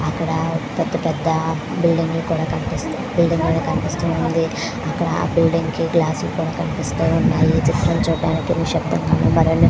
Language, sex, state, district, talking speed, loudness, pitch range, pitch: Telugu, female, Andhra Pradesh, Visakhapatnam, 105 wpm, -19 LUFS, 160-165 Hz, 165 Hz